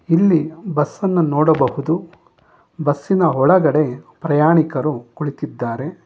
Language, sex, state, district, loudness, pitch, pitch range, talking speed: Kannada, male, Karnataka, Bangalore, -17 LUFS, 155 Hz, 145-170 Hz, 70 wpm